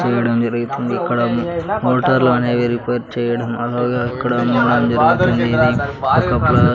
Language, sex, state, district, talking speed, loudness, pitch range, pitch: Telugu, male, Andhra Pradesh, Sri Satya Sai, 125 wpm, -17 LUFS, 120-125 Hz, 120 Hz